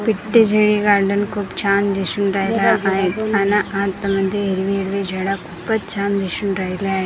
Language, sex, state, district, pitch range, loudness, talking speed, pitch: Marathi, female, Maharashtra, Gondia, 195-205 Hz, -18 LUFS, 155 wpm, 200 Hz